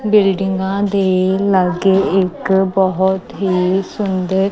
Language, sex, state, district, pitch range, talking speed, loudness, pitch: Punjabi, female, Punjab, Kapurthala, 185-195 Hz, 95 wpm, -16 LUFS, 190 Hz